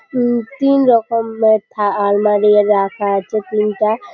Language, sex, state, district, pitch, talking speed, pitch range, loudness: Bengali, female, West Bengal, Malda, 215 Hz, 130 wpm, 205-230 Hz, -15 LUFS